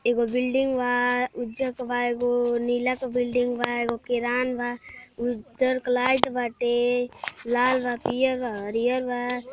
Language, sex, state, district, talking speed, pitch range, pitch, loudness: Bhojpuri, male, Uttar Pradesh, Deoria, 150 wpm, 240-255 Hz, 245 Hz, -25 LUFS